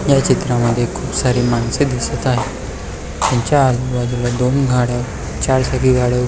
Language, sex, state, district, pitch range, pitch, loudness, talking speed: Marathi, male, Maharashtra, Pune, 120-130 Hz, 125 Hz, -17 LUFS, 135 wpm